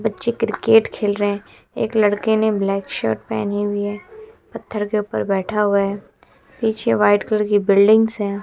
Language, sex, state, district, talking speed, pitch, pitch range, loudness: Hindi, female, Bihar, West Champaran, 180 wpm, 205 Hz, 200-220 Hz, -19 LUFS